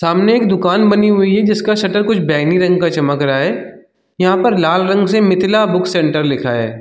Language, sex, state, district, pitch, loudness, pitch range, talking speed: Hindi, male, Chhattisgarh, Bilaspur, 185 Hz, -13 LUFS, 160-205 Hz, 220 wpm